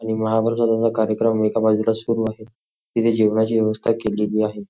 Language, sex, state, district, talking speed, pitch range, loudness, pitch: Marathi, male, Maharashtra, Nagpur, 165 wpm, 110-115 Hz, -20 LUFS, 110 Hz